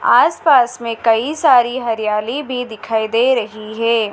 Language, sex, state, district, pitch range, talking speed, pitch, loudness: Hindi, female, Madhya Pradesh, Dhar, 220-245 Hz, 160 wpm, 230 Hz, -16 LUFS